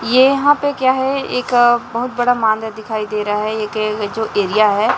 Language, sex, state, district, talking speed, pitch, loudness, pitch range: Hindi, male, Chhattisgarh, Raipur, 205 wpm, 225 Hz, -16 LUFS, 215-250 Hz